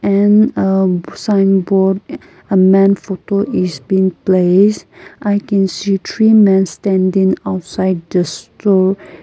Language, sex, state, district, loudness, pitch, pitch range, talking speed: English, female, Nagaland, Kohima, -14 LUFS, 195 Hz, 185-205 Hz, 125 wpm